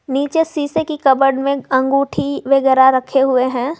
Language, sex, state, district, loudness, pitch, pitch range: Hindi, female, Jharkhand, Garhwa, -15 LUFS, 270 Hz, 265-285 Hz